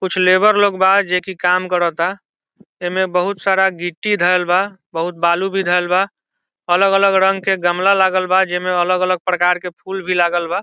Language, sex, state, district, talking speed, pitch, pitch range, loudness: Bhojpuri, male, Bihar, Saran, 190 wpm, 185 Hz, 180-190 Hz, -16 LUFS